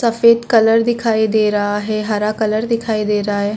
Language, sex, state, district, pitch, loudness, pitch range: Hindi, female, Chhattisgarh, Korba, 220 Hz, -16 LUFS, 210-230 Hz